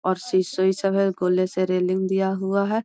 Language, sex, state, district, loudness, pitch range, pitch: Magahi, female, Bihar, Gaya, -22 LUFS, 185-195 Hz, 190 Hz